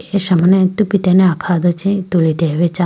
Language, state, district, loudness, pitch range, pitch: Idu Mishmi, Arunachal Pradesh, Lower Dibang Valley, -14 LUFS, 170-195 Hz, 180 Hz